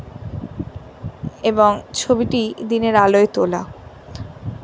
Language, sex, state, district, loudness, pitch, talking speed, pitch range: Bengali, female, West Bengal, North 24 Parganas, -17 LUFS, 220 Hz, 65 wpm, 205-230 Hz